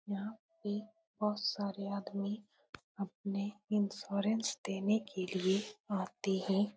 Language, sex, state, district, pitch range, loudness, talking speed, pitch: Hindi, female, Bihar, Saran, 200-210 Hz, -37 LUFS, 105 wpm, 205 Hz